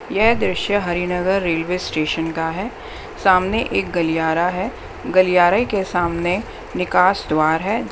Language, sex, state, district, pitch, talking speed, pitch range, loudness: Hindi, female, Bihar, West Champaran, 180 Hz, 130 wpm, 165-195 Hz, -19 LUFS